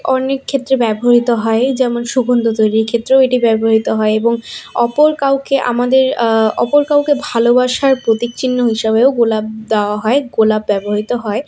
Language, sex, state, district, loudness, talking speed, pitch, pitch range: Bengali, female, West Bengal, Alipurduar, -14 LUFS, 150 wpm, 240 Hz, 220-265 Hz